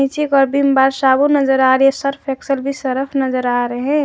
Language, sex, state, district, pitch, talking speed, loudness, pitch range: Hindi, female, Jharkhand, Garhwa, 270 Hz, 250 wpm, -15 LUFS, 265-275 Hz